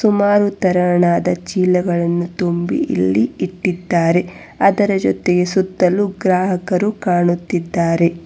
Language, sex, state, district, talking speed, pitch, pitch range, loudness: Kannada, female, Karnataka, Bangalore, 80 wpm, 180 Hz, 175-190 Hz, -16 LUFS